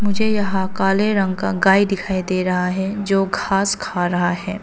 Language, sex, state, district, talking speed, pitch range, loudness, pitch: Hindi, female, Arunachal Pradesh, Papum Pare, 195 wpm, 185-200 Hz, -19 LUFS, 195 Hz